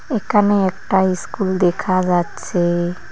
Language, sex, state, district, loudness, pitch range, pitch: Bengali, female, West Bengal, Cooch Behar, -18 LUFS, 175-195 Hz, 185 Hz